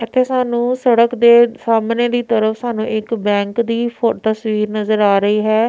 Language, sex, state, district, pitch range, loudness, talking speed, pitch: Punjabi, female, Punjab, Pathankot, 215-240 Hz, -15 LUFS, 180 wpm, 230 Hz